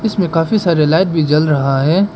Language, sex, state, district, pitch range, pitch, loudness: Hindi, male, Arunachal Pradesh, Papum Pare, 150-190 Hz, 165 Hz, -14 LUFS